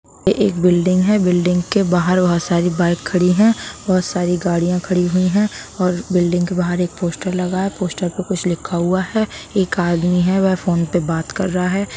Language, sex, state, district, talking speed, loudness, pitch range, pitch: Hindi, male, Uttar Pradesh, Budaun, 205 wpm, -17 LUFS, 175-190 Hz, 180 Hz